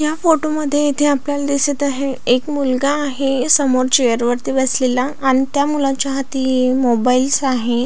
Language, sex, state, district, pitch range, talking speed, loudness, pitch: Marathi, female, Maharashtra, Solapur, 255-285 Hz, 155 wpm, -16 LUFS, 270 Hz